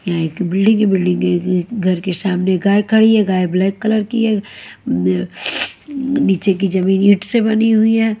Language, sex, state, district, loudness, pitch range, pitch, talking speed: Hindi, female, Haryana, Jhajjar, -15 LUFS, 185-220 Hz, 195 Hz, 185 wpm